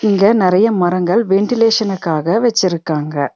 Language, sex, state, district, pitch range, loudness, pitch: Tamil, female, Tamil Nadu, Nilgiris, 175-220 Hz, -14 LUFS, 195 Hz